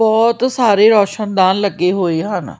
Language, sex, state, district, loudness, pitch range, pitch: Punjabi, female, Punjab, Kapurthala, -14 LUFS, 185-220 Hz, 205 Hz